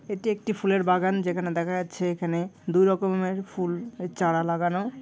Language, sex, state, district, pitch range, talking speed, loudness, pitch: Bengali, female, West Bengal, Paschim Medinipur, 175-195 Hz, 170 wpm, -26 LUFS, 180 Hz